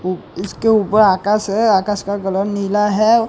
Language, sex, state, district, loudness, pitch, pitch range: Hindi, male, Gujarat, Gandhinagar, -16 LUFS, 205 Hz, 195-215 Hz